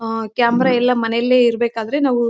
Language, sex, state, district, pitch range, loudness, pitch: Kannada, female, Karnataka, Bellary, 230-250 Hz, -17 LUFS, 235 Hz